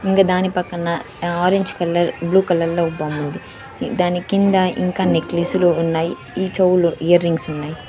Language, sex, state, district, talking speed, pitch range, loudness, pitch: Telugu, female, Andhra Pradesh, Sri Satya Sai, 150 wpm, 165-185 Hz, -18 LUFS, 175 Hz